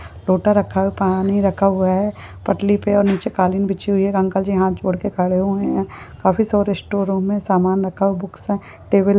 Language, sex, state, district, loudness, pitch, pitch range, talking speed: Hindi, female, Maharashtra, Nagpur, -18 LUFS, 195 Hz, 190-200 Hz, 165 wpm